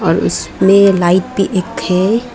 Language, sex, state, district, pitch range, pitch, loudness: Hindi, female, Arunachal Pradesh, Lower Dibang Valley, 185-200 Hz, 190 Hz, -13 LUFS